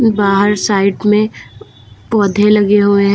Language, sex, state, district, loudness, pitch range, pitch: Hindi, female, Uttar Pradesh, Lucknow, -12 LUFS, 200-210 Hz, 205 Hz